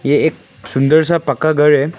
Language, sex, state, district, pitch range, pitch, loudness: Hindi, male, Arunachal Pradesh, Longding, 140-155 Hz, 150 Hz, -14 LUFS